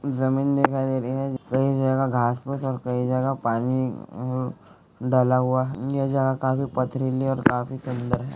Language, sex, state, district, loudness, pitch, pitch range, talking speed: Hindi, male, Chhattisgarh, Bilaspur, -24 LUFS, 130 Hz, 125-135 Hz, 165 wpm